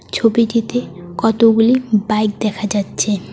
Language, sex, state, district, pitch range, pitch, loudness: Bengali, female, West Bengal, Alipurduar, 210-230 Hz, 220 Hz, -16 LUFS